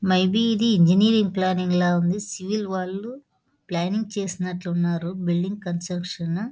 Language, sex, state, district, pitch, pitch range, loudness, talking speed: Telugu, female, Andhra Pradesh, Anantapur, 185 Hz, 175-205 Hz, -23 LUFS, 120 wpm